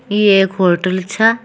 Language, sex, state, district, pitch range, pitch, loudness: Kumaoni, female, Uttarakhand, Tehri Garhwal, 185-210 Hz, 195 Hz, -14 LUFS